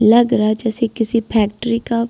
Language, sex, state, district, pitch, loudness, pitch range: Hindi, female, Delhi, New Delhi, 230 Hz, -17 LUFS, 220-235 Hz